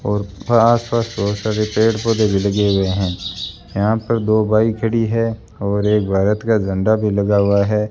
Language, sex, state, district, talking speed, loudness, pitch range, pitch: Hindi, male, Rajasthan, Bikaner, 195 wpm, -17 LUFS, 100-110 Hz, 105 Hz